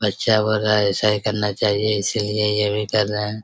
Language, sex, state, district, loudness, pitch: Hindi, male, Chhattisgarh, Raigarh, -20 LUFS, 105 Hz